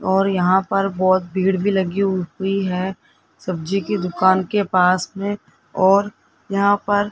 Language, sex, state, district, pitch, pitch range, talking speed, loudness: Hindi, male, Rajasthan, Jaipur, 190 Hz, 185-200 Hz, 160 wpm, -19 LUFS